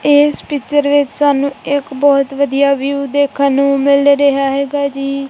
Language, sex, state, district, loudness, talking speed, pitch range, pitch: Punjabi, female, Punjab, Kapurthala, -13 LUFS, 160 wpm, 275-285 Hz, 280 Hz